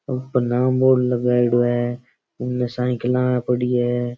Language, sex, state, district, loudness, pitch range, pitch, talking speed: Rajasthani, male, Rajasthan, Churu, -20 LUFS, 120-125 Hz, 125 Hz, 130 wpm